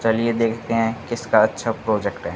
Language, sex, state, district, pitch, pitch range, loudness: Hindi, male, Haryana, Charkhi Dadri, 115 Hz, 110-115 Hz, -21 LUFS